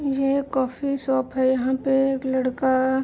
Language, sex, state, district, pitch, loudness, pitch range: Hindi, female, Uttar Pradesh, Jalaun, 265 Hz, -23 LUFS, 260-270 Hz